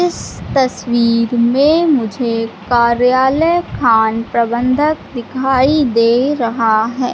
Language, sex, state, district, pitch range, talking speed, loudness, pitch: Hindi, female, Madhya Pradesh, Katni, 230-270 Hz, 95 wpm, -14 LUFS, 245 Hz